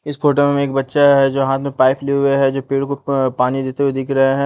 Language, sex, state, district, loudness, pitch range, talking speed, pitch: Hindi, male, Haryana, Jhajjar, -16 LUFS, 135-140 Hz, 310 wpm, 135 Hz